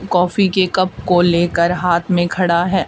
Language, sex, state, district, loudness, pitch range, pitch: Hindi, female, Haryana, Charkhi Dadri, -15 LUFS, 175-185 Hz, 180 Hz